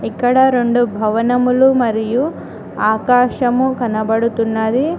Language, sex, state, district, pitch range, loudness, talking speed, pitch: Telugu, female, Telangana, Mahabubabad, 225-255 Hz, -15 LUFS, 70 wpm, 245 Hz